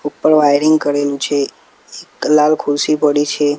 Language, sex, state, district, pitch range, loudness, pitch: Gujarati, male, Gujarat, Gandhinagar, 145-150 Hz, -14 LUFS, 145 Hz